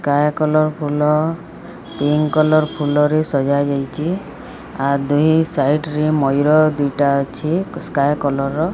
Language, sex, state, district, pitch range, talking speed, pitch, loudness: Odia, female, Odisha, Sambalpur, 140-155 Hz, 125 wpm, 150 Hz, -17 LUFS